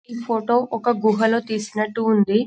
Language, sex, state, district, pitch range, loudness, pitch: Telugu, female, Telangana, Karimnagar, 215-235 Hz, -21 LUFS, 225 Hz